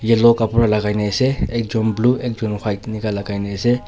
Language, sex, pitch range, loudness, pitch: Nagamese, male, 105-120 Hz, -19 LUFS, 110 Hz